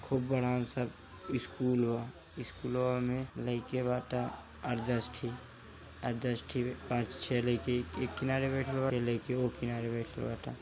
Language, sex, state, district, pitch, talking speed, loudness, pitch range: Hindi, male, Uttar Pradesh, Gorakhpur, 125 Hz, 135 wpm, -35 LUFS, 120-125 Hz